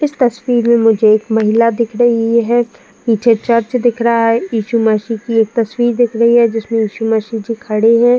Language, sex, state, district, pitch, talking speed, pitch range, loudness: Hindi, female, Uttar Pradesh, Jalaun, 230 Hz, 205 wpm, 225-235 Hz, -13 LUFS